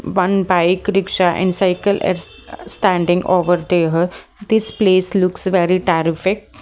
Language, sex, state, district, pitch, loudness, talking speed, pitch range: English, female, Haryana, Jhajjar, 185 Hz, -16 LUFS, 135 wpm, 175-195 Hz